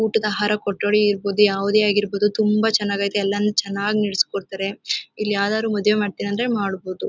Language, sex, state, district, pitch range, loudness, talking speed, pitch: Kannada, female, Karnataka, Mysore, 200-210 Hz, -20 LUFS, 145 wpm, 205 Hz